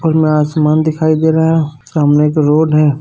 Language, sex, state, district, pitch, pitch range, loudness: Hindi, male, Bihar, Saran, 155 Hz, 150-160 Hz, -12 LUFS